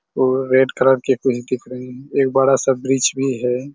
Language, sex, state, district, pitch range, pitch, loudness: Hindi, male, Chhattisgarh, Raigarh, 125-135 Hz, 130 Hz, -18 LUFS